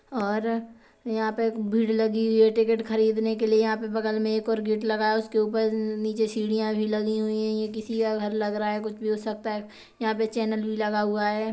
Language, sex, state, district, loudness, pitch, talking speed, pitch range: Hindi, male, Chhattisgarh, Kabirdham, -26 LUFS, 220 Hz, 245 wpm, 215-220 Hz